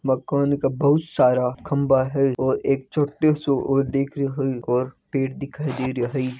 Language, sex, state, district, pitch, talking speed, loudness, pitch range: Hindi, male, Rajasthan, Nagaur, 135 Hz, 180 wpm, -22 LUFS, 130-140 Hz